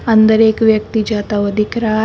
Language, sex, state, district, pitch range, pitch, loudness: Hindi, female, Uttar Pradesh, Shamli, 210-220 Hz, 220 Hz, -14 LUFS